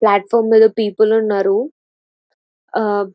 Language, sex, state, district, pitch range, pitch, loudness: Telugu, female, Andhra Pradesh, Visakhapatnam, 205-225 Hz, 220 Hz, -15 LUFS